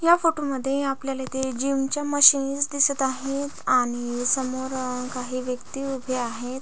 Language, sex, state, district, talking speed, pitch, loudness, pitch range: Marathi, female, Maharashtra, Aurangabad, 135 wpm, 265 Hz, -24 LUFS, 255-280 Hz